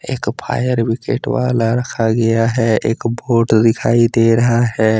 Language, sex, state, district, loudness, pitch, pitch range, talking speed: Hindi, male, Jharkhand, Deoghar, -15 LUFS, 115 Hz, 115-120 Hz, 145 wpm